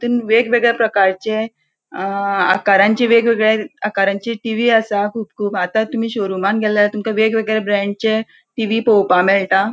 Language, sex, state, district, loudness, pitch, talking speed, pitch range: Konkani, female, Goa, North and South Goa, -16 LUFS, 215 Hz, 130 wpm, 200-225 Hz